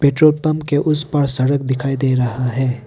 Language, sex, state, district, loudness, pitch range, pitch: Hindi, male, Arunachal Pradesh, Papum Pare, -17 LUFS, 130-150 Hz, 140 Hz